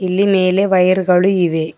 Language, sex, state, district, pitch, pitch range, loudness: Kannada, female, Karnataka, Bidar, 185 Hz, 180-190 Hz, -14 LUFS